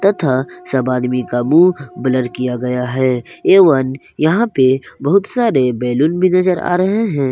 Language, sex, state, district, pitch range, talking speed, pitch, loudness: Hindi, male, Jharkhand, Garhwa, 125-185 Hz, 165 wpm, 135 Hz, -15 LUFS